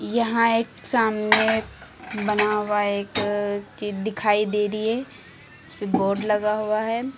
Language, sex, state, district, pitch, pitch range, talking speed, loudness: Hindi, female, Uttar Pradesh, Lucknow, 215 Hz, 210-225 Hz, 135 wpm, -22 LUFS